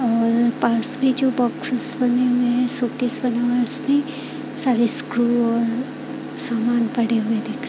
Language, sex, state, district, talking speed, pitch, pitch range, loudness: Hindi, female, Bihar, Katihar, 165 wpm, 245 Hz, 235-265 Hz, -20 LUFS